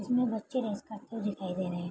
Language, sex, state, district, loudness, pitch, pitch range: Hindi, female, Bihar, Araria, -34 LUFS, 215 Hz, 190-240 Hz